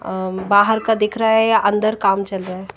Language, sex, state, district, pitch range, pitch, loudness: Hindi, female, Odisha, Nuapada, 195-220 Hz, 205 Hz, -17 LUFS